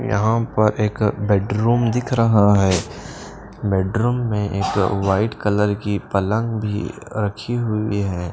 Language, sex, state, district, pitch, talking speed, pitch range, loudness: Hindi, male, Punjab, Pathankot, 105 Hz, 130 wpm, 100-110 Hz, -20 LUFS